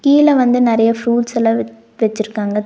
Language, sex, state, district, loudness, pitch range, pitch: Tamil, female, Tamil Nadu, Nilgiris, -15 LUFS, 210-245 Hz, 230 Hz